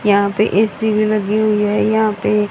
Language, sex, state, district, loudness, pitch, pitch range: Hindi, female, Haryana, Rohtak, -16 LUFS, 215 Hz, 205-215 Hz